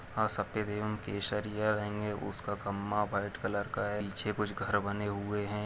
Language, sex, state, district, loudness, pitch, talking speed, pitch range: Hindi, male, Chhattisgarh, Bilaspur, -34 LUFS, 105 Hz, 180 wpm, 100-105 Hz